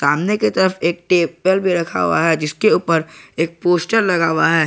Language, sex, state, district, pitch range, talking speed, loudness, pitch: Hindi, male, Jharkhand, Garhwa, 165-180 Hz, 205 wpm, -17 LUFS, 170 Hz